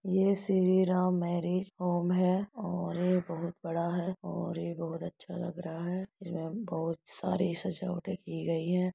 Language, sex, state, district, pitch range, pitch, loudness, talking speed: Hindi, female, Uttar Pradesh, Etah, 170-185 Hz, 180 Hz, -32 LUFS, 170 wpm